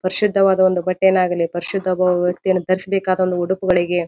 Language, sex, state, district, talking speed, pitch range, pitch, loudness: Kannada, female, Karnataka, Bijapur, 115 wpm, 180-190 Hz, 185 Hz, -18 LUFS